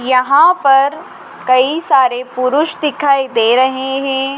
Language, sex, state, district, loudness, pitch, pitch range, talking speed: Hindi, female, Madhya Pradesh, Dhar, -13 LUFS, 270 Hz, 255-280 Hz, 125 wpm